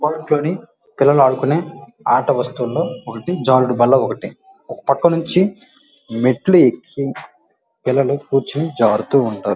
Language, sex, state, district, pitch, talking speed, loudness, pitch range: Telugu, male, Andhra Pradesh, Guntur, 140 Hz, 120 wpm, -17 LUFS, 130-170 Hz